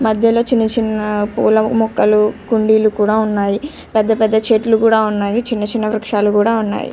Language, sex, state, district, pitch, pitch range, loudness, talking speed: Telugu, female, Andhra Pradesh, Chittoor, 220 Hz, 210-225 Hz, -15 LUFS, 155 wpm